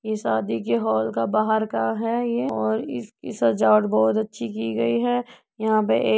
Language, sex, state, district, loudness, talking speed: Hindi, female, Uttar Pradesh, Budaun, -23 LUFS, 215 wpm